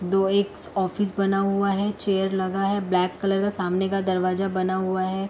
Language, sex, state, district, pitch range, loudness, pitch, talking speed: Hindi, female, Uttar Pradesh, Etah, 185-195 Hz, -24 LUFS, 195 Hz, 205 wpm